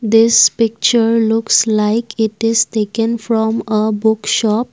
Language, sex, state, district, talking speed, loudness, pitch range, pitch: English, female, Assam, Kamrup Metropolitan, 140 wpm, -14 LUFS, 215-230 Hz, 225 Hz